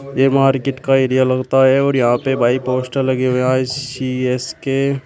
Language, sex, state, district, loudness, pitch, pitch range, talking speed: Hindi, male, Uttar Pradesh, Shamli, -16 LUFS, 130 Hz, 130-135 Hz, 190 wpm